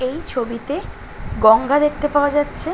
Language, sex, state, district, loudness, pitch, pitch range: Bengali, female, West Bengal, Malda, -18 LUFS, 290 Hz, 250-295 Hz